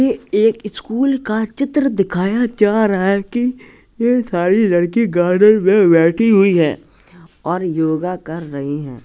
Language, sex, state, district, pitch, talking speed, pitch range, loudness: Hindi, male, Uttar Pradesh, Jalaun, 200 Hz, 145 wpm, 175-225 Hz, -16 LUFS